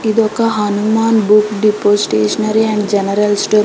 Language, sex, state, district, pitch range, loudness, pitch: Telugu, female, Telangana, Karimnagar, 205-220 Hz, -13 LUFS, 210 Hz